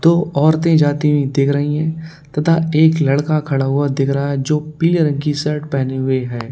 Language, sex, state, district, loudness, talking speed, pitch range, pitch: Hindi, male, Uttar Pradesh, Lalitpur, -16 LUFS, 210 wpm, 140-155 Hz, 150 Hz